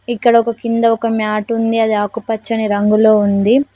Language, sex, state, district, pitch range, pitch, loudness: Telugu, female, Telangana, Mahabubabad, 215-230 Hz, 225 Hz, -14 LUFS